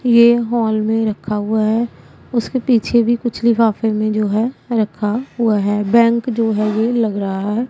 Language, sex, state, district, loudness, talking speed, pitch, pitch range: Hindi, female, Punjab, Pathankot, -17 LUFS, 185 wpm, 225 Hz, 215-235 Hz